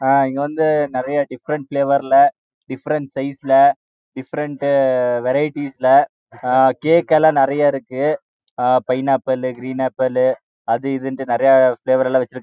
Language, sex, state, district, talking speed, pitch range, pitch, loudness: Tamil, male, Karnataka, Chamarajanagar, 75 wpm, 130-145 Hz, 135 Hz, -17 LUFS